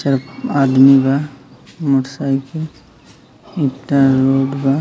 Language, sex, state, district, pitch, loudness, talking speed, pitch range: Bhojpuri, male, Bihar, Muzaffarpur, 135 Hz, -15 LUFS, 85 wpm, 135-140 Hz